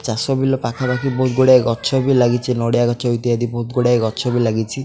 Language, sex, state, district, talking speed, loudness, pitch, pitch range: Odia, male, Odisha, Khordha, 195 wpm, -17 LUFS, 120 Hz, 120-130 Hz